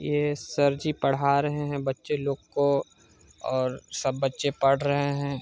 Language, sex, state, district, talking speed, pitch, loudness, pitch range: Hindi, male, Chhattisgarh, Sarguja, 165 wpm, 140 Hz, -26 LUFS, 135-145 Hz